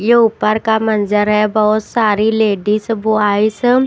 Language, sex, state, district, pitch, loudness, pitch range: Hindi, female, Haryana, Jhajjar, 215 Hz, -14 LUFS, 210-220 Hz